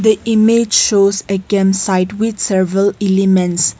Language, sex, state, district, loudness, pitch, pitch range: English, female, Nagaland, Kohima, -13 LUFS, 195 Hz, 190-215 Hz